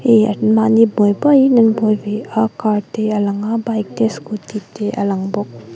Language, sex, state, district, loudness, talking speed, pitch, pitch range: Mizo, female, Mizoram, Aizawl, -16 LUFS, 210 wpm, 215 Hz, 205-225 Hz